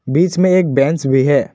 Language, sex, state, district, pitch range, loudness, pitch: Hindi, male, Assam, Kamrup Metropolitan, 135-180 Hz, -14 LUFS, 145 Hz